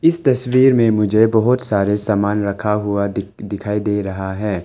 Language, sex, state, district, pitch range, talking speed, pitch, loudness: Hindi, male, Arunachal Pradesh, Longding, 100-115 Hz, 180 wpm, 105 Hz, -17 LUFS